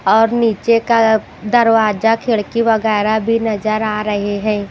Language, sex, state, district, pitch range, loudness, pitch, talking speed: Hindi, female, Bihar, Katihar, 215-230 Hz, -15 LUFS, 220 Hz, 140 wpm